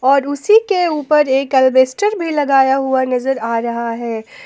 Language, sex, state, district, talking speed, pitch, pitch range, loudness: Hindi, female, Jharkhand, Palamu, 175 wpm, 270 Hz, 255-300 Hz, -15 LUFS